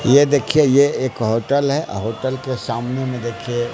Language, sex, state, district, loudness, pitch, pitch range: Hindi, male, Bihar, Katihar, -18 LUFS, 130 Hz, 120-140 Hz